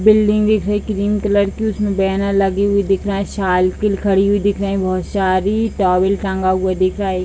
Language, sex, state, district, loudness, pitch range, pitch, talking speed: Hindi, female, Bihar, Jahanabad, -16 LUFS, 190-205 Hz, 200 Hz, 230 wpm